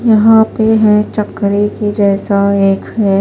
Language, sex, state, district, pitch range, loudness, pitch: Hindi, female, Maharashtra, Washim, 200-220 Hz, -12 LUFS, 210 Hz